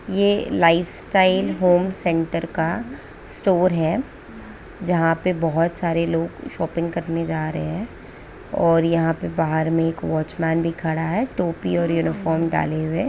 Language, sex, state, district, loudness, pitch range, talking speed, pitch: Hindi, female, West Bengal, Kolkata, -21 LUFS, 165-180 Hz, 145 wpm, 165 Hz